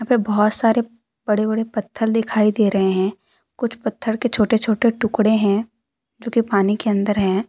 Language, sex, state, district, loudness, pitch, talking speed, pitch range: Hindi, female, Jharkhand, Deoghar, -19 LUFS, 220 Hz, 185 wpm, 210-230 Hz